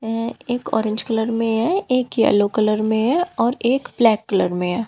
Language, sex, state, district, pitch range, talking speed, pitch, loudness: Hindi, female, Haryana, Jhajjar, 215-245 Hz, 210 wpm, 225 Hz, -19 LUFS